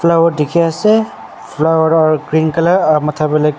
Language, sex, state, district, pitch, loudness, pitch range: Nagamese, male, Nagaland, Dimapur, 160 Hz, -13 LUFS, 150-170 Hz